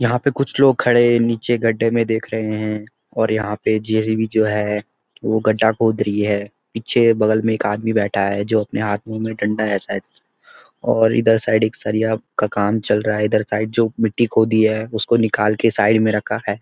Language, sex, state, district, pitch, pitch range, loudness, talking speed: Hindi, male, Uttarakhand, Uttarkashi, 110 Hz, 105-115 Hz, -18 LUFS, 210 wpm